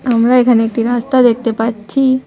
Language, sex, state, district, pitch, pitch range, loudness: Bengali, female, West Bengal, Cooch Behar, 240 Hz, 230-255 Hz, -13 LUFS